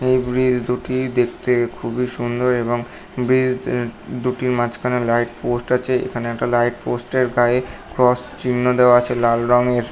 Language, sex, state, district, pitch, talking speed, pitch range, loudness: Bengali, male, West Bengal, North 24 Parganas, 125 Hz, 155 wpm, 120-125 Hz, -19 LUFS